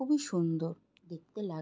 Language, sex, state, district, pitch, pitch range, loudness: Bengali, female, West Bengal, Jalpaiguri, 175 Hz, 165-215 Hz, -34 LUFS